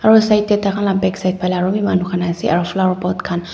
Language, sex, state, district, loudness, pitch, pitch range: Nagamese, female, Nagaland, Dimapur, -17 LUFS, 185 Hz, 180-205 Hz